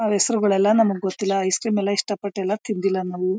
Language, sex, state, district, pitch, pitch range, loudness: Kannada, female, Karnataka, Mysore, 200 Hz, 190-210 Hz, -21 LUFS